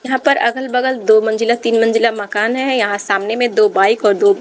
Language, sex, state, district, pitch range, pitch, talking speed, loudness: Hindi, female, Bihar, West Champaran, 210-255 Hz, 230 Hz, 230 wpm, -14 LUFS